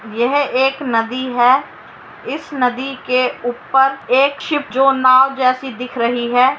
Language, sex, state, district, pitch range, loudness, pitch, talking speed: Hindi, female, Uttar Pradesh, Muzaffarnagar, 250-270 Hz, -16 LUFS, 255 Hz, 145 wpm